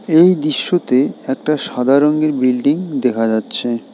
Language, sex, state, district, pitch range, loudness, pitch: Bengali, male, West Bengal, Alipurduar, 125-155 Hz, -15 LUFS, 140 Hz